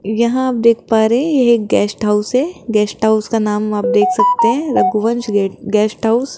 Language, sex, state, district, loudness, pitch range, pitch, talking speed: Hindi, female, Rajasthan, Jaipur, -15 LUFS, 210-245 Hz, 225 Hz, 215 wpm